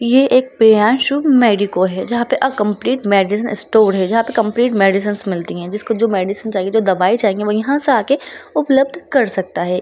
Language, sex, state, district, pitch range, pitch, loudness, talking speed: Hindi, female, Bihar, Lakhisarai, 200-255 Hz, 220 Hz, -15 LUFS, 200 wpm